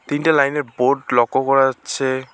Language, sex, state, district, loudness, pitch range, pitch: Bengali, male, West Bengal, Alipurduar, -18 LUFS, 130-140 Hz, 135 Hz